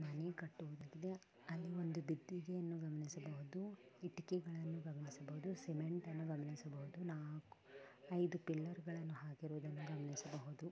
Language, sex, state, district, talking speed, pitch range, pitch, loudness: Kannada, female, Karnataka, Bellary, 95 wpm, 150-175 Hz, 160 Hz, -48 LUFS